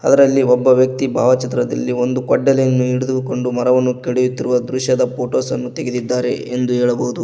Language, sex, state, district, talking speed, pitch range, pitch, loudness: Kannada, male, Karnataka, Koppal, 125 wpm, 125-130 Hz, 125 Hz, -16 LUFS